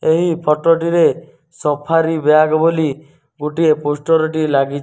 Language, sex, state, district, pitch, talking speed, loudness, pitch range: Odia, male, Odisha, Nuapada, 155 Hz, 135 wpm, -15 LUFS, 150-165 Hz